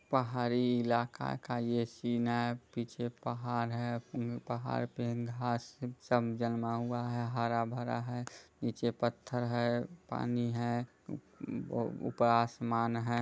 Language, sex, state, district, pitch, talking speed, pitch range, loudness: Hindi, male, Bihar, Muzaffarpur, 120 Hz, 120 wpm, 115-120 Hz, -35 LUFS